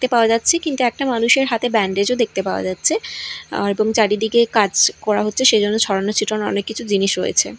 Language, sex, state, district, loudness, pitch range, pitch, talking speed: Bengali, female, Odisha, Malkangiri, -17 LUFS, 205-235 Hz, 220 Hz, 200 wpm